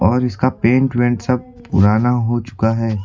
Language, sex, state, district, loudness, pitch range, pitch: Hindi, male, Uttar Pradesh, Lucknow, -17 LUFS, 110-125 Hz, 120 Hz